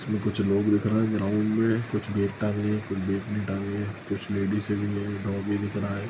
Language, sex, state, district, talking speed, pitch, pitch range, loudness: Hindi, male, Bihar, Lakhisarai, 245 wpm, 105 Hz, 100-105 Hz, -27 LUFS